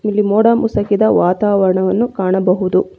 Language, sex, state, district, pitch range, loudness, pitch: Kannada, female, Karnataka, Bangalore, 185-215 Hz, -14 LUFS, 205 Hz